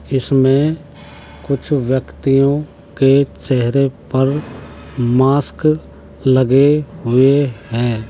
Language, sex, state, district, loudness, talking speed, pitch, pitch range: Hindi, male, Uttar Pradesh, Jalaun, -15 LUFS, 75 wpm, 135 Hz, 130-145 Hz